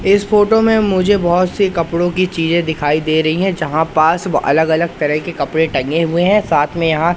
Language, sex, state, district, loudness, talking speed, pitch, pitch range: Hindi, male, Madhya Pradesh, Katni, -14 LUFS, 225 wpm, 170 Hz, 160-185 Hz